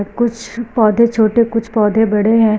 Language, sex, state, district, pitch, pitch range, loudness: Hindi, female, Uttar Pradesh, Lucknow, 225 Hz, 215-230 Hz, -14 LUFS